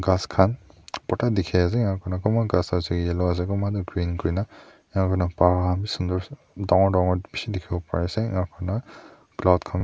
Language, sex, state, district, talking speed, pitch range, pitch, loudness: Nagamese, male, Nagaland, Dimapur, 195 wpm, 90-100 Hz, 90 Hz, -24 LUFS